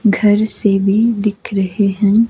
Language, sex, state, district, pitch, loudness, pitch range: Hindi, female, Himachal Pradesh, Shimla, 205 Hz, -14 LUFS, 200-215 Hz